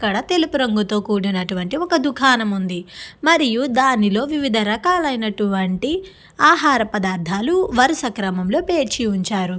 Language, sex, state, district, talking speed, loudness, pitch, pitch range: Telugu, female, Andhra Pradesh, Guntur, 110 wpm, -18 LUFS, 220 Hz, 195-285 Hz